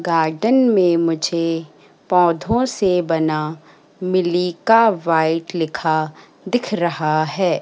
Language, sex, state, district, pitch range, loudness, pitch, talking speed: Hindi, female, Madhya Pradesh, Katni, 160-185 Hz, -18 LUFS, 170 Hz, 95 wpm